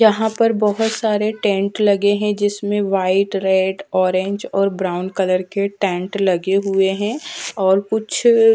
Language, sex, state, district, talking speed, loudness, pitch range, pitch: Hindi, female, Punjab, Fazilka, 145 wpm, -18 LUFS, 190-215 Hz, 200 Hz